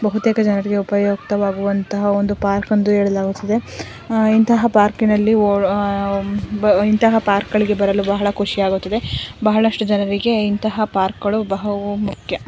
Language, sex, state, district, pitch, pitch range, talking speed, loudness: Kannada, female, Karnataka, Dharwad, 205 Hz, 200-215 Hz, 100 wpm, -17 LUFS